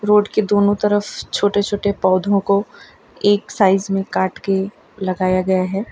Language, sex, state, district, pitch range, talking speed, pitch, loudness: Hindi, female, Gujarat, Valsad, 190-205 Hz, 160 wpm, 200 Hz, -18 LUFS